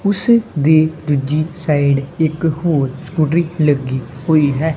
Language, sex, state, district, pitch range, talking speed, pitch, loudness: Punjabi, male, Punjab, Kapurthala, 145-165 Hz, 125 wpm, 155 Hz, -16 LUFS